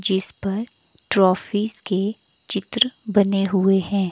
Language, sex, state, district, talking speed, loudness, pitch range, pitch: Hindi, female, Himachal Pradesh, Shimla, 115 wpm, -20 LUFS, 190-210 Hz, 200 Hz